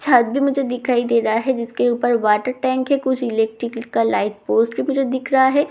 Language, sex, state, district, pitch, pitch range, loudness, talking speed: Hindi, female, Bihar, Katihar, 245 Hz, 230-265 Hz, -19 LUFS, 220 wpm